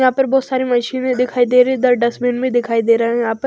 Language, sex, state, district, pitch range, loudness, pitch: Hindi, female, Chhattisgarh, Raipur, 235-255 Hz, -16 LUFS, 250 Hz